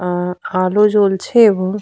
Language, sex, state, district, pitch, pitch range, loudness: Bengali, female, Jharkhand, Sahebganj, 190 Hz, 185-210 Hz, -14 LUFS